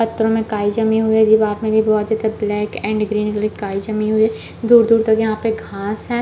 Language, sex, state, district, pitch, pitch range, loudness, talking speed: Hindi, female, Chhattisgarh, Balrampur, 220 Hz, 210-220 Hz, -17 LUFS, 240 wpm